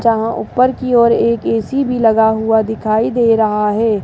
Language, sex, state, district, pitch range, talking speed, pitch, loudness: Hindi, female, Rajasthan, Jaipur, 220-235 Hz, 195 wpm, 225 Hz, -14 LUFS